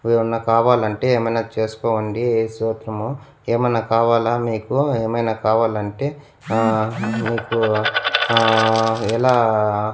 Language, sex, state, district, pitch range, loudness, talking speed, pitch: Telugu, male, Andhra Pradesh, Annamaya, 110-115 Hz, -19 LUFS, 105 wpm, 115 Hz